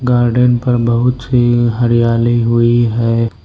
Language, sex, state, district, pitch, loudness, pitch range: Hindi, male, Arunachal Pradesh, Lower Dibang Valley, 120 Hz, -13 LUFS, 115-120 Hz